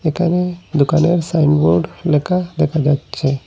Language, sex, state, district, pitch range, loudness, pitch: Bengali, male, Assam, Hailakandi, 145-175 Hz, -16 LUFS, 155 Hz